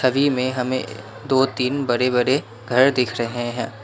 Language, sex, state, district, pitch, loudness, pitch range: Hindi, male, Assam, Kamrup Metropolitan, 125 Hz, -20 LUFS, 120-130 Hz